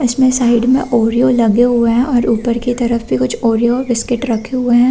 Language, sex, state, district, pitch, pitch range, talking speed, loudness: Hindi, female, Chhattisgarh, Rajnandgaon, 240 Hz, 230-250 Hz, 220 wpm, -14 LUFS